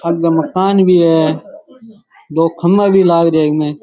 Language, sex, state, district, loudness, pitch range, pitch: Rajasthani, male, Rajasthan, Churu, -12 LUFS, 160-195 Hz, 170 Hz